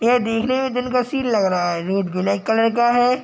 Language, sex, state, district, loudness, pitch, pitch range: Hindi, male, Bihar, Gopalganj, -19 LUFS, 230 Hz, 195-250 Hz